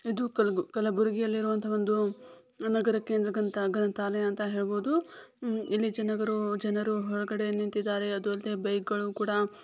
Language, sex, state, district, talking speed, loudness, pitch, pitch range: Kannada, female, Karnataka, Gulbarga, 130 wpm, -30 LUFS, 210 Hz, 205-220 Hz